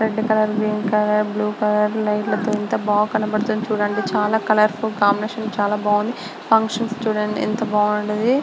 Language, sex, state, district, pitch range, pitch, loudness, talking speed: Telugu, female, Andhra Pradesh, Guntur, 210-220 Hz, 215 Hz, -20 LUFS, 155 wpm